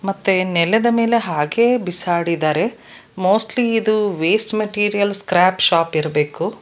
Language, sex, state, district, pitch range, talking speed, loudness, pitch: Kannada, female, Karnataka, Bangalore, 170-220 Hz, 110 wpm, -17 LUFS, 195 Hz